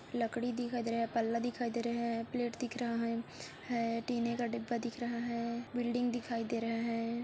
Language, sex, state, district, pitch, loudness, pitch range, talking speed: Hindi, female, Chhattisgarh, Kabirdham, 235 Hz, -36 LUFS, 230-240 Hz, 205 wpm